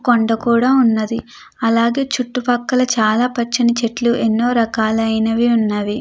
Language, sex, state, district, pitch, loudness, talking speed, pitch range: Telugu, female, Andhra Pradesh, Krishna, 235 Hz, -16 LUFS, 130 wpm, 225-245 Hz